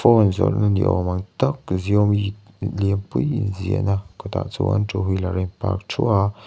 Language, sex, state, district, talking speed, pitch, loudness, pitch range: Mizo, male, Mizoram, Aizawl, 185 wpm, 100 Hz, -22 LUFS, 95-105 Hz